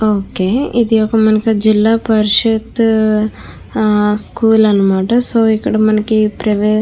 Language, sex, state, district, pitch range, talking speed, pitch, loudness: Telugu, female, Andhra Pradesh, Krishna, 210-225 Hz, 115 wpm, 215 Hz, -13 LUFS